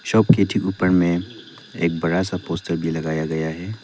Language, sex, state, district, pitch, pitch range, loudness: Hindi, male, Arunachal Pradesh, Lower Dibang Valley, 85 Hz, 80-95 Hz, -21 LUFS